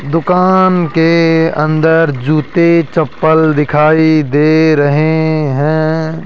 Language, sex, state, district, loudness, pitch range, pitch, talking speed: Hindi, male, Rajasthan, Jaipur, -11 LUFS, 155-165 Hz, 160 Hz, 85 wpm